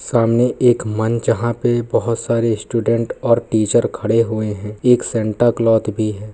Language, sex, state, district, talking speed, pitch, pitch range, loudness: Hindi, male, Bihar, Purnia, 170 wpm, 115 Hz, 110-120 Hz, -17 LUFS